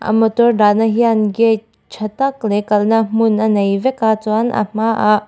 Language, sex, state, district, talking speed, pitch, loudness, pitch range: Mizo, female, Mizoram, Aizawl, 205 wpm, 220 Hz, -15 LUFS, 210-225 Hz